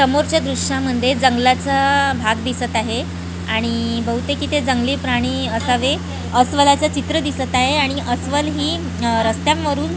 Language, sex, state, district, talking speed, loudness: Marathi, female, Maharashtra, Gondia, 120 wpm, -18 LUFS